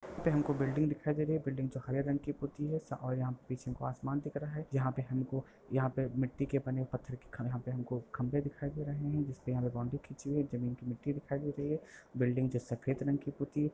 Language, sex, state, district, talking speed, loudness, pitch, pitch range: Hindi, male, Bihar, Lakhisarai, 275 wpm, -37 LUFS, 135 Hz, 125-145 Hz